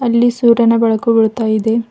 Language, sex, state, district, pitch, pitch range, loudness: Kannada, female, Karnataka, Bidar, 230 Hz, 225-235 Hz, -13 LUFS